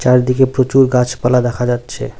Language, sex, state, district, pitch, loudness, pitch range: Bengali, male, West Bengal, Cooch Behar, 125 Hz, -14 LUFS, 125-130 Hz